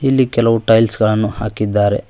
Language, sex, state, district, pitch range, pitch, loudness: Kannada, male, Karnataka, Koppal, 105-115 Hz, 110 Hz, -15 LUFS